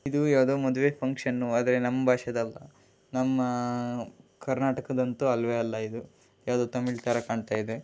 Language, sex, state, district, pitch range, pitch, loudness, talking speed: Kannada, male, Karnataka, Raichur, 120-130 Hz, 125 Hz, -28 LUFS, 140 wpm